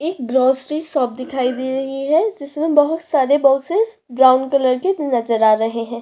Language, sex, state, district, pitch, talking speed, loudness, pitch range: Hindi, female, Chhattisgarh, Korba, 270 Hz, 180 wpm, -17 LUFS, 250-300 Hz